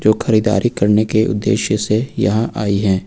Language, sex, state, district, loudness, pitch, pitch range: Hindi, male, Uttar Pradesh, Lucknow, -16 LUFS, 110 Hz, 105-115 Hz